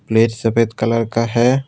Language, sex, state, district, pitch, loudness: Hindi, male, Tripura, West Tripura, 115 Hz, -17 LUFS